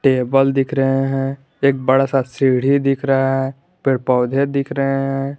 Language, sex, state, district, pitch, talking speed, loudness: Hindi, male, Jharkhand, Garhwa, 135 Hz, 180 wpm, -17 LUFS